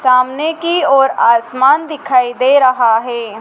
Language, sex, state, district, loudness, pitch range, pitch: Hindi, female, Madhya Pradesh, Dhar, -12 LUFS, 245-280 Hz, 260 Hz